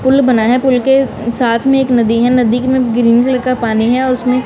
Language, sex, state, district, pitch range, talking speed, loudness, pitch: Hindi, female, Punjab, Kapurthala, 235-260 Hz, 245 wpm, -12 LUFS, 250 Hz